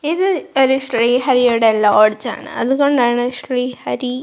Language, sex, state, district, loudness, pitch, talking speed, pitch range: Malayalam, female, Kerala, Kozhikode, -16 LUFS, 250 Hz, 130 wpm, 235-270 Hz